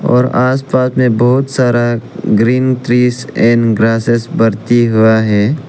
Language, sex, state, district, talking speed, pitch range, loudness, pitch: Hindi, male, Arunachal Pradesh, Lower Dibang Valley, 135 wpm, 115-125 Hz, -12 LUFS, 120 Hz